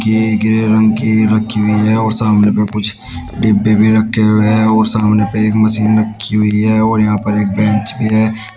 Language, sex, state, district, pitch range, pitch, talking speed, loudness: Hindi, male, Uttar Pradesh, Shamli, 105-110 Hz, 110 Hz, 215 wpm, -12 LUFS